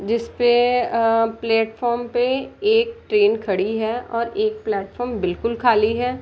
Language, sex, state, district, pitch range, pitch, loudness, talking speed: Hindi, female, Bihar, Gopalganj, 225-250 Hz, 235 Hz, -20 LUFS, 135 wpm